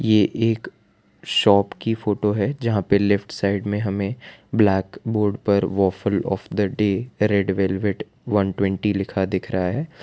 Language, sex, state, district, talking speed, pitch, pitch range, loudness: Hindi, male, Gujarat, Valsad, 160 wpm, 100 Hz, 100-110 Hz, -22 LUFS